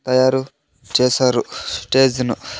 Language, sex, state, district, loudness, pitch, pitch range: Telugu, male, Andhra Pradesh, Sri Satya Sai, -18 LUFS, 130 Hz, 125-130 Hz